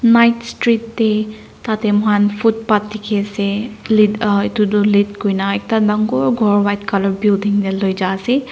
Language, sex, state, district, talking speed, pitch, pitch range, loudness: Nagamese, female, Nagaland, Dimapur, 170 wpm, 210 Hz, 205-220 Hz, -16 LUFS